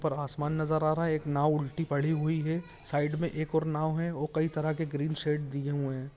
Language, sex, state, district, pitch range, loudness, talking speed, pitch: Hindi, male, Jharkhand, Jamtara, 145-160 Hz, -31 LUFS, 245 wpm, 155 Hz